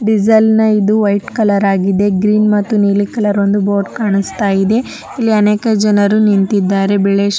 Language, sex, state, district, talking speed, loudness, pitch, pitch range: Kannada, male, Karnataka, Dharwad, 155 wpm, -12 LUFS, 205 Hz, 200-215 Hz